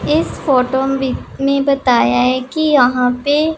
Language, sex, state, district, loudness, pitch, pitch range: Hindi, female, Punjab, Pathankot, -15 LUFS, 265 Hz, 250-290 Hz